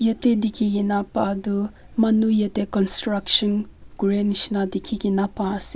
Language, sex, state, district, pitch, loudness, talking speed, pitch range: Nagamese, female, Nagaland, Kohima, 205 Hz, -20 LUFS, 145 wpm, 200-220 Hz